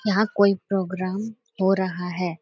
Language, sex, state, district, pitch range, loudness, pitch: Hindi, female, Uttar Pradesh, Etah, 185-205 Hz, -24 LUFS, 195 Hz